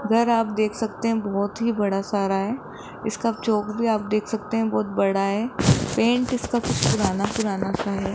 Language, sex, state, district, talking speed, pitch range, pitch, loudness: Hindi, male, Rajasthan, Jaipur, 200 wpm, 200-230 Hz, 215 Hz, -23 LUFS